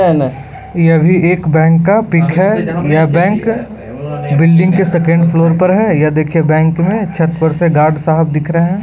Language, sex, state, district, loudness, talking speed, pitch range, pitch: Hindi, male, Bihar, Begusarai, -11 LUFS, 185 wpm, 155-180 Hz, 165 Hz